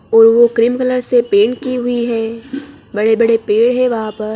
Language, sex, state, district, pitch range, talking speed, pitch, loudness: Hindi, female, Bihar, Araria, 225-250 Hz, 190 wpm, 235 Hz, -13 LUFS